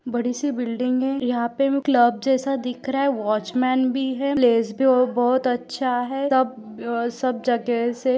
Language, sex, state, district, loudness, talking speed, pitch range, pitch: Hindi, female, Maharashtra, Aurangabad, -22 LUFS, 175 wpm, 240-265 Hz, 250 Hz